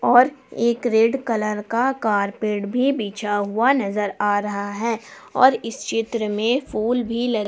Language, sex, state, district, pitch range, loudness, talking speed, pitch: Hindi, female, Jharkhand, Palamu, 210-245 Hz, -21 LUFS, 160 wpm, 225 Hz